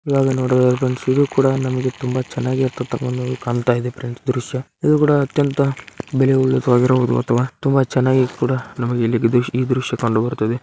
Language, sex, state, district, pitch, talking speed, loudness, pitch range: Kannada, male, Karnataka, Bijapur, 130 Hz, 140 wpm, -18 LUFS, 125-135 Hz